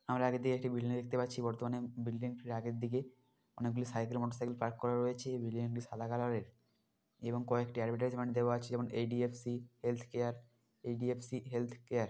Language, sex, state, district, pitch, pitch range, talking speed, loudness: Bengali, male, West Bengal, Dakshin Dinajpur, 120 Hz, 120-125 Hz, 195 wpm, -38 LUFS